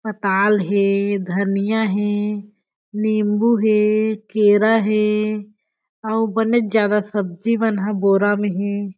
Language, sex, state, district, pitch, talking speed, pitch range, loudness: Chhattisgarhi, female, Chhattisgarh, Jashpur, 210 Hz, 115 wpm, 200-220 Hz, -18 LUFS